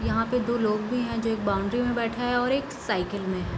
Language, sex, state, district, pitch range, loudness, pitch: Hindi, female, Bihar, East Champaran, 210-245 Hz, -27 LUFS, 230 Hz